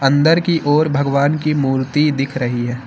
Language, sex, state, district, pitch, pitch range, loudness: Hindi, male, Uttar Pradesh, Lucknow, 140 Hz, 135-150 Hz, -16 LUFS